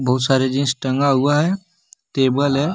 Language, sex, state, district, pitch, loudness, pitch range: Hindi, male, Jharkhand, Deoghar, 140 Hz, -18 LUFS, 130-145 Hz